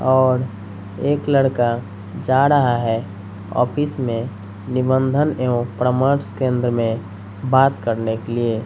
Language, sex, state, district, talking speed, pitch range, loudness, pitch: Hindi, female, Bihar, West Champaran, 120 wpm, 110-130 Hz, -19 LUFS, 120 Hz